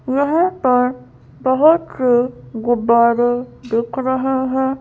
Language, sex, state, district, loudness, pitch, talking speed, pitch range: Hindi, female, Madhya Pradesh, Bhopal, -17 LUFS, 250 Hz, 100 wpm, 235-265 Hz